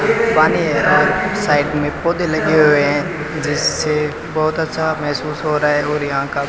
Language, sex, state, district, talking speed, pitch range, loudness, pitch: Hindi, male, Rajasthan, Bikaner, 185 wpm, 150-160 Hz, -16 LUFS, 155 Hz